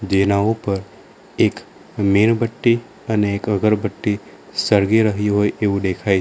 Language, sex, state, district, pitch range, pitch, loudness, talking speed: Gujarati, male, Gujarat, Valsad, 100-110 Hz, 105 Hz, -19 LUFS, 125 wpm